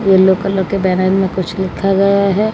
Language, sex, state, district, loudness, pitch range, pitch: Hindi, female, Odisha, Malkangiri, -14 LUFS, 190-195 Hz, 195 Hz